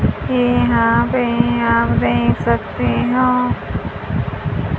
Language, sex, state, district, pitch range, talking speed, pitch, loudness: Hindi, female, Haryana, Charkhi Dadri, 115-130 Hz, 75 wpm, 120 Hz, -17 LUFS